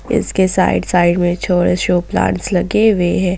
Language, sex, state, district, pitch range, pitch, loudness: Hindi, female, Jharkhand, Ranchi, 175-190 Hz, 180 Hz, -15 LUFS